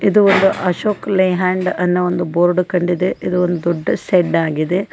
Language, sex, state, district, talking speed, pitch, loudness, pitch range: Kannada, female, Karnataka, Koppal, 160 wpm, 180 Hz, -16 LUFS, 175-190 Hz